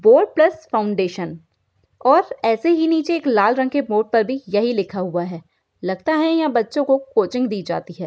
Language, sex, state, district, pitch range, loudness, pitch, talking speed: Hindi, female, Uttar Pradesh, Gorakhpur, 190-315 Hz, -19 LUFS, 230 Hz, 195 wpm